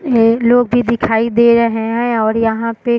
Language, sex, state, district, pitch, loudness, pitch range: Hindi, female, Bihar, Bhagalpur, 235 Hz, -13 LUFS, 225-240 Hz